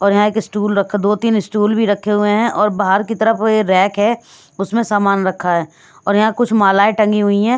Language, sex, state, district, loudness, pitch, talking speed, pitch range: Hindi, female, Punjab, Pathankot, -15 LUFS, 210 Hz, 230 wpm, 200-215 Hz